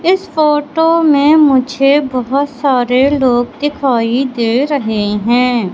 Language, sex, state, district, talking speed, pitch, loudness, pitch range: Hindi, female, Madhya Pradesh, Katni, 115 wpm, 270 Hz, -12 LUFS, 245-290 Hz